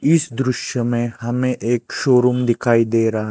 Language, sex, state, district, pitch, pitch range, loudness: Hindi, male, Chhattisgarh, Raipur, 120 Hz, 115-125 Hz, -18 LUFS